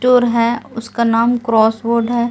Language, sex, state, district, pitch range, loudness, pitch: Hindi, female, Delhi, New Delhi, 230-240 Hz, -15 LUFS, 235 Hz